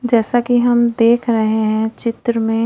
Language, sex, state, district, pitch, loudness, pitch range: Hindi, female, Odisha, Khordha, 230 Hz, -16 LUFS, 225-240 Hz